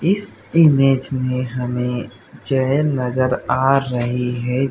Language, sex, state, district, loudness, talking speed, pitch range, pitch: Hindi, male, Chhattisgarh, Bilaspur, -18 LUFS, 115 wpm, 125-135 Hz, 130 Hz